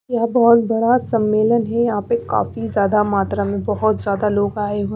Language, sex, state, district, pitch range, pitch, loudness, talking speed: Hindi, female, Bihar, Katihar, 205-235 Hz, 215 Hz, -18 LUFS, 195 wpm